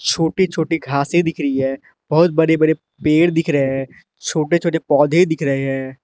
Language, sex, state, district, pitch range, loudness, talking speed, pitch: Hindi, male, Arunachal Pradesh, Lower Dibang Valley, 140-165 Hz, -17 LUFS, 190 wpm, 160 Hz